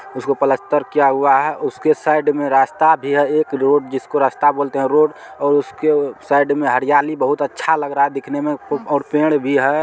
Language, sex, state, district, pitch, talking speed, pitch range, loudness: Maithili, male, Bihar, Supaul, 145 Hz, 215 wpm, 140-150 Hz, -17 LUFS